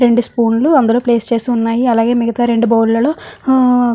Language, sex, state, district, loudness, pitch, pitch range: Telugu, female, Andhra Pradesh, Visakhapatnam, -13 LUFS, 240 Hz, 230-250 Hz